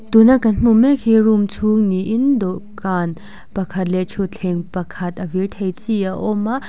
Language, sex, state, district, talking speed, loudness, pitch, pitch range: Mizo, female, Mizoram, Aizawl, 180 wpm, -17 LUFS, 200 Hz, 185-220 Hz